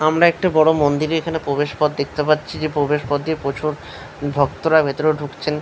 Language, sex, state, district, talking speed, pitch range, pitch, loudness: Bengali, male, West Bengal, Paschim Medinipur, 180 wpm, 145-155 Hz, 150 Hz, -19 LUFS